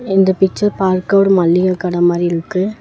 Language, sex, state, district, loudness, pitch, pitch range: Tamil, female, Tamil Nadu, Namakkal, -14 LUFS, 185 Hz, 180-195 Hz